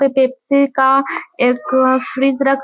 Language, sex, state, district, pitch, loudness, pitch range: Hindi, female, Bihar, Muzaffarpur, 270 Hz, -15 LUFS, 260-275 Hz